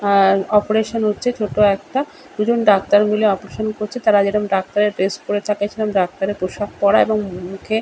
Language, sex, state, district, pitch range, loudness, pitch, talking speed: Bengali, male, West Bengal, Kolkata, 200-215 Hz, -18 LUFS, 210 Hz, 160 wpm